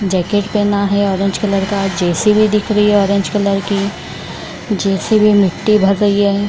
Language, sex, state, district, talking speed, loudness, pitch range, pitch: Hindi, female, Bihar, Kishanganj, 165 wpm, -14 LUFS, 195-210 Hz, 200 Hz